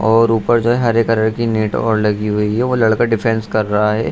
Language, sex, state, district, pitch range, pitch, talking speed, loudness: Hindi, male, Bihar, Saharsa, 105-115 Hz, 110 Hz, 260 wpm, -15 LUFS